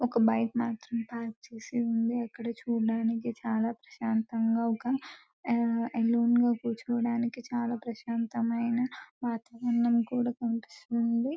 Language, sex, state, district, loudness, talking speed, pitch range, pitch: Telugu, female, Telangana, Nalgonda, -30 LUFS, 105 wpm, 230-240 Hz, 235 Hz